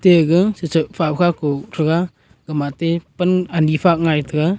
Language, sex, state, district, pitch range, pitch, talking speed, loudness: Wancho, male, Arunachal Pradesh, Longding, 155-175 Hz, 165 Hz, 155 wpm, -18 LUFS